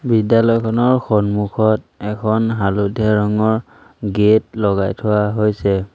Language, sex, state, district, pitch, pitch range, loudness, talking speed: Assamese, male, Assam, Sonitpur, 105 Hz, 105-110 Hz, -17 LUFS, 90 wpm